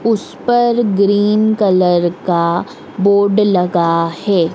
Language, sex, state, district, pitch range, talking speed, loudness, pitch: Hindi, female, Madhya Pradesh, Dhar, 175-210 Hz, 105 wpm, -14 LUFS, 200 Hz